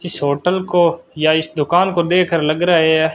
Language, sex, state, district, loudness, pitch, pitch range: Hindi, male, Rajasthan, Bikaner, -15 LUFS, 170 Hz, 155-175 Hz